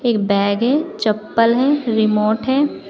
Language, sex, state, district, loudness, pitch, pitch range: Hindi, female, Uttar Pradesh, Saharanpur, -17 LUFS, 230 Hz, 215-265 Hz